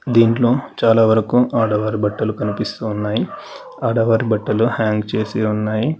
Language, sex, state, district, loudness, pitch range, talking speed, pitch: Telugu, male, Telangana, Hyderabad, -18 LUFS, 105-115 Hz, 100 wpm, 110 Hz